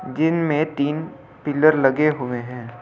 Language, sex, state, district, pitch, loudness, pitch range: Hindi, male, Delhi, New Delhi, 145 Hz, -20 LUFS, 125-155 Hz